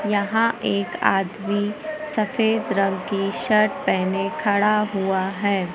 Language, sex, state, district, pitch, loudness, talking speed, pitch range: Hindi, female, Madhya Pradesh, Umaria, 205 Hz, -22 LUFS, 115 wpm, 190-215 Hz